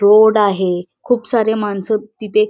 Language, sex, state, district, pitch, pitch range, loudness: Marathi, female, Maharashtra, Solapur, 215 Hz, 200-220 Hz, -16 LUFS